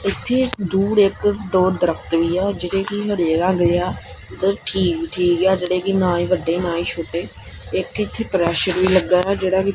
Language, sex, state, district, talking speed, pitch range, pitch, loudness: Punjabi, male, Punjab, Kapurthala, 205 wpm, 175-195 Hz, 185 Hz, -19 LUFS